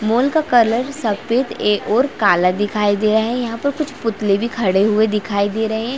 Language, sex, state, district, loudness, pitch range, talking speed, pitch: Hindi, female, Chhattisgarh, Raigarh, -17 LUFS, 210-245 Hz, 220 wpm, 220 Hz